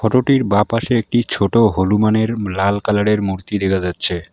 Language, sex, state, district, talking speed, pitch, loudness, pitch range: Bengali, male, West Bengal, Alipurduar, 165 wpm, 105 Hz, -16 LUFS, 95-115 Hz